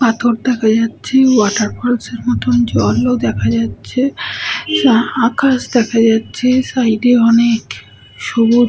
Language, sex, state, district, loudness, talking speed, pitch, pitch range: Bengali, female, West Bengal, Purulia, -14 LUFS, 125 wpm, 235 Hz, 220-250 Hz